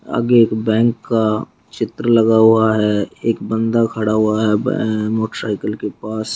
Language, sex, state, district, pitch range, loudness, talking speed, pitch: Hindi, male, Uttar Pradesh, Muzaffarnagar, 110-115 Hz, -17 LUFS, 160 wpm, 110 Hz